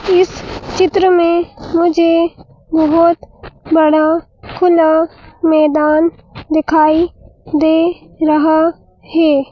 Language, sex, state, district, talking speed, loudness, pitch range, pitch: Hindi, female, Madhya Pradesh, Bhopal, 75 wpm, -13 LUFS, 315-340 Hz, 325 Hz